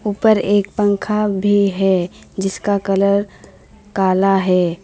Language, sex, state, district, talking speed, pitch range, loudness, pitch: Hindi, female, West Bengal, Alipurduar, 125 wpm, 190-205 Hz, -17 LUFS, 200 Hz